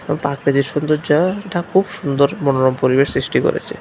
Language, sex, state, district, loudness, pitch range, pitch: Bengali, male, Tripura, West Tripura, -17 LUFS, 140-175 Hz, 145 Hz